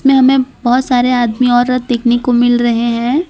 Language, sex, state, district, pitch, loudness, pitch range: Hindi, female, Gujarat, Valsad, 245 Hz, -12 LUFS, 240-255 Hz